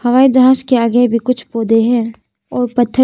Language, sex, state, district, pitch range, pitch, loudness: Hindi, female, Arunachal Pradesh, Papum Pare, 230-255 Hz, 245 Hz, -13 LUFS